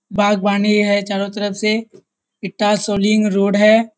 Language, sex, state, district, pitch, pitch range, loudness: Hindi, male, Bihar, Kishanganj, 205 Hz, 205-215 Hz, -16 LUFS